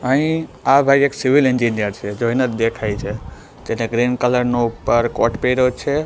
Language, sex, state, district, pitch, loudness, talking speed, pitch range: Gujarati, male, Gujarat, Gandhinagar, 125 Hz, -18 LUFS, 190 wpm, 115-130 Hz